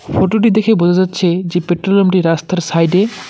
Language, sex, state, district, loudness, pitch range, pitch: Bengali, male, West Bengal, Cooch Behar, -13 LUFS, 175-195 Hz, 185 Hz